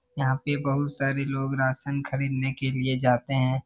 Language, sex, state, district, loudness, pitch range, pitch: Hindi, male, Bihar, Jahanabad, -26 LUFS, 130-140 Hz, 135 Hz